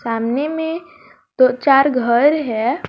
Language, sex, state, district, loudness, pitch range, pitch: Hindi, female, Jharkhand, Garhwa, -16 LUFS, 235-295 Hz, 265 Hz